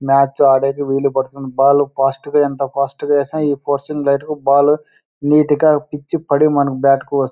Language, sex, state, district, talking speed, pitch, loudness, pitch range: Telugu, male, Andhra Pradesh, Anantapur, 180 wpm, 140 Hz, -16 LUFS, 135-150 Hz